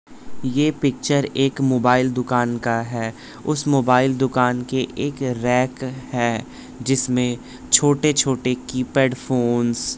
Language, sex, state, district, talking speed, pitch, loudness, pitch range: Hindi, male, Bihar, West Champaran, 115 wpm, 130 Hz, -20 LUFS, 125-135 Hz